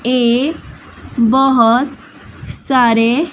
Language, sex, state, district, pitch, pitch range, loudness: Hindi, female, Bihar, West Champaran, 250 Hz, 235-270 Hz, -13 LUFS